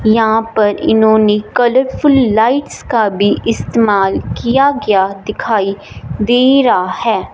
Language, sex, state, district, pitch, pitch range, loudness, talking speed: Hindi, female, Punjab, Fazilka, 220 Hz, 210-245 Hz, -13 LUFS, 115 wpm